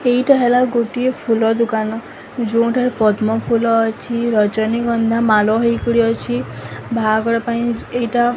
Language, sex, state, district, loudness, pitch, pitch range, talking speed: Odia, female, Odisha, Sambalpur, -17 LUFS, 230 Hz, 220-235 Hz, 120 wpm